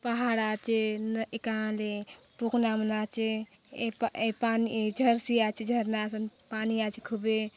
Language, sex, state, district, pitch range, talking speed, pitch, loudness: Halbi, female, Chhattisgarh, Bastar, 215-230 Hz, 150 wpm, 220 Hz, -30 LUFS